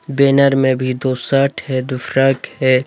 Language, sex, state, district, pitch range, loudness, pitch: Hindi, male, Jharkhand, Deoghar, 130-135 Hz, -16 LUFS, 135 Hz